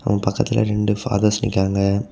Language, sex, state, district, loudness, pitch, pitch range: Tamil, male, Tamil Nadu, Kanyakumari, -20 LUFS, 105 Hz, 100-115 Hz